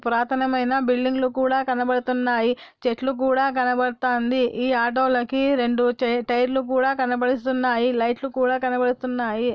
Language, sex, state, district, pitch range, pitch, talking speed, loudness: Telugu, female, Andhra Pradesh, Anantapur, 245-260 Hz, 250 Hz, 125 wpm, -22 LUFS